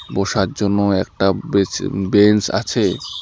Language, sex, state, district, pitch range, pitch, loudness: Bengali, male, West Bengal, Alipurduar, 95-105 Hz, 100 Hz, -17 LUFS